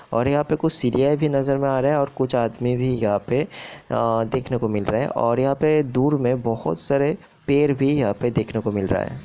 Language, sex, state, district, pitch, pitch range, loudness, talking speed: Hindi, male, Bihar, Sitamarhi, 130 Hz, 115-140 Hz, -21 LUFS, 255 wpm